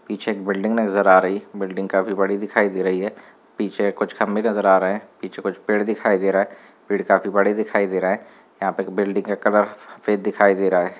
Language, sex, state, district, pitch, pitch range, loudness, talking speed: Hindi, male, Rajasthan, Nagaur, 100 Hz, 95-105 Hz, -20 LUFS, 245 wpm